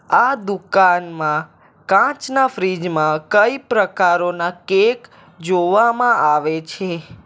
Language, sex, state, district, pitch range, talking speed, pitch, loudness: Gujarati, male, Gujarat, Valsad, 160-230 Hz, 90 wpm, 180 Hz, -17 LUFS